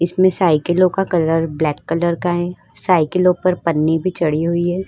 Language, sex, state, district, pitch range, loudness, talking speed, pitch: Hindi, female, Uttar Pradesh, Varanasi, 165-180 Hz, -17 LUFS, 185 wpm, 175 Hz